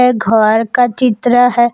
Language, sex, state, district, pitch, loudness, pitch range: Hindi, female, Jharkhand, Palamu, 240 Hz, -12 LUFS, 225-245 Hz